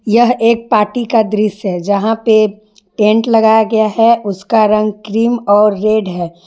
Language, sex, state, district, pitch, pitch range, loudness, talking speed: Hindi, female, Jharkhand, Garhwa, 215 Hz, 210-225 Hz, -12 LUFS, 165 wpm